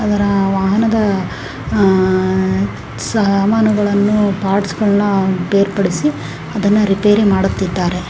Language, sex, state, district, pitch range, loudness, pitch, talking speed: Kannada, female, Karnataka, Raichur, 185-205 Hz, -15 LUFS, 195 Hz, 75 wpm